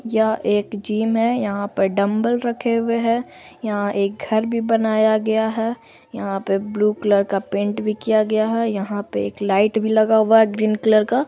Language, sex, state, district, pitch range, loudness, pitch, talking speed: Hindi, female, Bihar, Purnia, 205-225 Hz, -19 LUFS, 215 Hz, 200 wpm